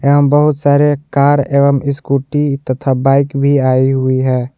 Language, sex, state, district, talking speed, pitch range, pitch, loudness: Hindi, male, Jharkhand, Ranchi, 155 wpm, 135-145 Hz, 140 Hz, -13 LUFS